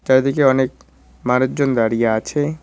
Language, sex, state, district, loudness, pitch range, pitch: Bengali, male, West Bengal, Cooch Behar, -18 LUFS, 125-140 Hz, 130 Hz